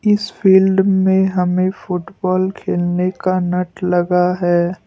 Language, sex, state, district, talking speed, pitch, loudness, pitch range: Hindi, male, Assam, Kamrup Metropolitan, 125 wpm, 185 Hz, -16 LUFS, 180-190 Hz